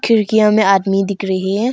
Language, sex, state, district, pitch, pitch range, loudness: Hindi, female, Arunachal Pradesh, Longding, 200 Hz, 195-220 Hz, -14 LUFS